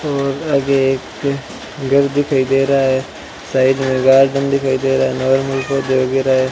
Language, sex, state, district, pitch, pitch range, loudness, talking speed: Hindi, male, Rajasthan, Bikaner, 135 Hz, 130-140 Hz, -16 LUFS, 175 wpm